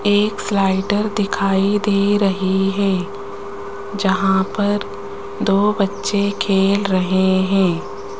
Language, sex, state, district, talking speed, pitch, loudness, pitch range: Hindi, female, Rajasthan, Jaipur, 95 wpm, 195 Hz, -18 LUFS, 190-205 Hz